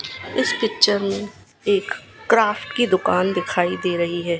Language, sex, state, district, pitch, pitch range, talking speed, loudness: Hindi, female, Gujarat, Gandhinagar, 195 Hz, 180-225 Hz, 150 wpm, -20 LUFS